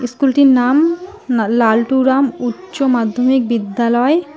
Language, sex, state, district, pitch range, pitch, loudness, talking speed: Bengali, female, West Bengal, Alipurduar, 235-280 Hz, 255 Hz, -14 LUFS, 95 wpm